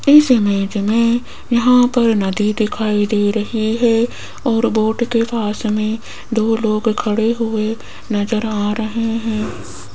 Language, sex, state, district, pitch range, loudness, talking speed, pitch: Hindi, female, Rajasthan, Jaipur, 210-230 Hz, -17 LUFS, 140 wpm, 220 Hz